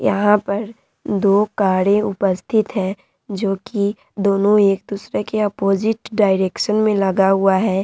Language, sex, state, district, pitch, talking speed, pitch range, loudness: Hindi, female, Bihar, Vaishali, 200 Hz, 130 wpm, 195-210 Hz, -18 LUFS